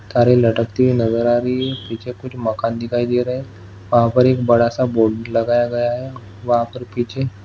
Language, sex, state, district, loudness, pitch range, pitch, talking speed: Hindi, male, Maharashtra, Solapur, -18 LUFS, 115-125 Hz, 120 Hz, 210 wpm